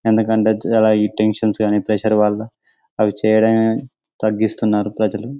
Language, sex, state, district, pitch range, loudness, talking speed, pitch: Telugu, male, Telangana, Karimnagar, 105-110 Hz, -17 LUFS, 120 wpm, 110 Hz